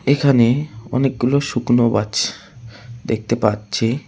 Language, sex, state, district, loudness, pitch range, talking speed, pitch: Bengali, male, West Bengal, Cooch Behar, -18 LUFS, 115-135 Hz, 90 wpm, 120 Hz